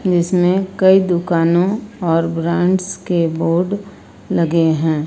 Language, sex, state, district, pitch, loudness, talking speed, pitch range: Hindi, female, Uttar Pradesh, Lucknow, 175 Hz, -16 LUFS, 105 wpm, 165-190 Hz